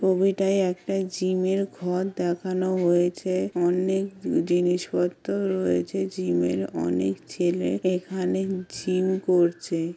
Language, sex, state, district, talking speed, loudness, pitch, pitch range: Bengali, female, West Bengal, Jhargram, 95 wpm, -25 LUFS, 180 Hz, 170-185 Hz